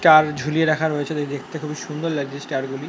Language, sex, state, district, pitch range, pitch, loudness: Bengali, male, West Bengal, North 24 Parganas, 145-155 Hz, 150 Hz, -22 LUFS